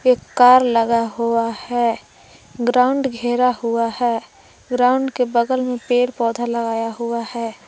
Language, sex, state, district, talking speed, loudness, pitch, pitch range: Hindi, female, Jharkhand, Palamu, 140 wpm, -18 LUFS, 240 Hz, 230-250 Hz